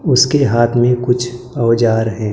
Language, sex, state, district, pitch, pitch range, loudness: Hindi, male, Maharashtra, Gondia, 120 Hz, 115-125 Hz, -14 LUFS